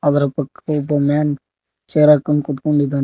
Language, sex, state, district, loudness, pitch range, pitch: Kannada, male, Karnataka, Koppal, -17 LUFS, 140-150 Hz, 145 Hz